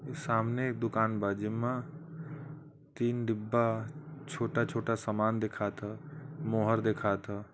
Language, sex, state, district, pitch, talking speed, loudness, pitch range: Bhojpuri, male, Uttar Pradesh, Varanasi, 115 Hz, 120 wpm, -33 LUFS, 110-145 Hz